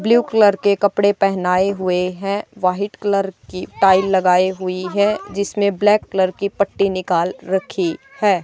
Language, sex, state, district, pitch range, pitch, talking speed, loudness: Hindi, female, Haryana, Charkhi Dadri, 185-205 Hz, 195 Hz, 155 wpm, -18 LUFS